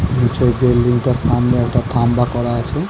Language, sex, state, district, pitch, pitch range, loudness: Bengali, male, West Bengal, Dakshin Dinajpur, 120 Hz, 120-125 Hz, -16 LUFS